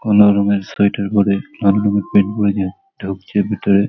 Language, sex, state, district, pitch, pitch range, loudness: Bengali, male, West Bengal, Malda, 100 Hz, 100-105 Hz, -16 LUFS